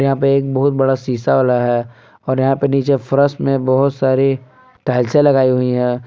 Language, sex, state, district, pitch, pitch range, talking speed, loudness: Hindi, male, Jharkhand, Palamu, 130 Hz, 125-135 Hz, 200 wpm, -15 LUFS